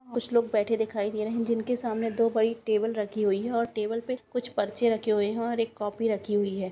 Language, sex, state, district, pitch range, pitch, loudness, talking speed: Hindi, female, Bihar, Saharsa, 210-235 Hz, 225 Hz, -28 LUFS, 265 wpm